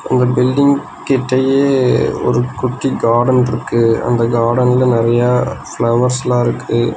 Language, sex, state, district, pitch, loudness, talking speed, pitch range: Tamil, male, Tamil Nadu, Nilgiris, 125 Hz, -14 LUFS, 95 wpm, 120-130 Hz